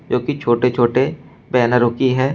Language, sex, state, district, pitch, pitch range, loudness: Hindi, male, Uttar Pradesh, Shamli, 125 Hz, 120-135 Hz, -17 LUFS